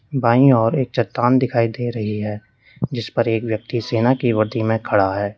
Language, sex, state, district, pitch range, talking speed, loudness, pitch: Hindi, male, Uttar Pradesh, Lalitpur, 110-125 Hz, 190 wpm, -19 LUFS, 115 Hz